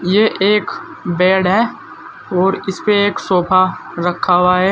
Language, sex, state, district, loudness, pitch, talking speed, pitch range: Hindi, male, Uttar Pradesh, Saharanpur, -15 LUFS, 190 Hz, 140 wpm, 180-210 Hz